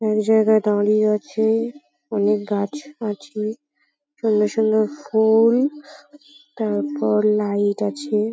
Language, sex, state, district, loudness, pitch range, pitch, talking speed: Bengali, female, West Bengal, Paschim Medinipur, -20 LUFS, 210-255 Hz, 220 Hz, 95 wpm